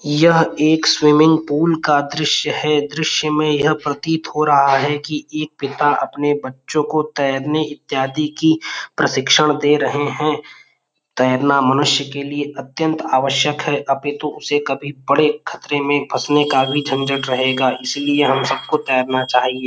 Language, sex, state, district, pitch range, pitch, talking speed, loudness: Hindi, male, Uttar Pradesh, Varanasi, 135-150 Hz, 145 Hz, 160 wpm, -17 LUFS